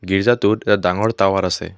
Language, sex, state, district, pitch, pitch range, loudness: Assamese, male, Assam, Kamrup Metropolitan, 95 Hz, 95-110 Hz, -17 LUFS